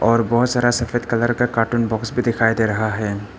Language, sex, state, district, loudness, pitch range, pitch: Hindi, male, Arunachal Pradesh, Papum Pare, -19 LUFS, 110-120 Hz, 115 Hz